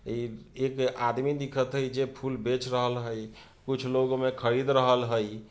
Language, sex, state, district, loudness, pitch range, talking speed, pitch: Bhojpuri, male, Bihar, Sitamarhi, -29 LUFS, 120-130 Hz, 185 wpm, 125 Hz